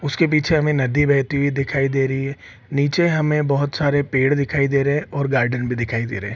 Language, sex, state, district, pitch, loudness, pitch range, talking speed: Hindi, male, Bihar, Saharsa, 140 Hz, -19 LUFS, 135-145 Hz, 245 wpm